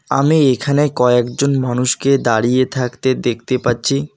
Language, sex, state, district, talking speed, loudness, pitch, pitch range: Bengali, male, West Bengal, Alipurduar, 115 wpm, -16 LUFS, 130 Hz, 125-140 Hz